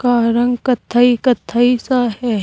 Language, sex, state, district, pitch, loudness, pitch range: Hindi, female, Uttar Pradesh, Saharanpur, 245 Hz, -15 LUFS, 235-245 Hz